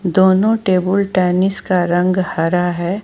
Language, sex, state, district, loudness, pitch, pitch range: Hindi, female, Jharkhand, Ranchi, -15 LUFS, 185 Hz, 175-190 Hz